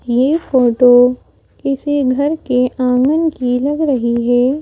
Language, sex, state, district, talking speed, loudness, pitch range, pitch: Hindi, female, Madhya Pradesh, Bhopal, 130 wpm, -14 LUFS, 245-285 Hz, 255 Hz